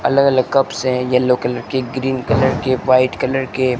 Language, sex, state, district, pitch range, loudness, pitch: Hindi, male, Rajasthan, Bikaner, 125-130 Hz, -17 LUFS, 130 Hz